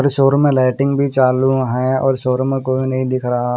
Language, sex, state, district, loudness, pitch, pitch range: Hindi, male, Haryana, Rohtak, -16 LUFS, 130 Hz, 130-135 Hz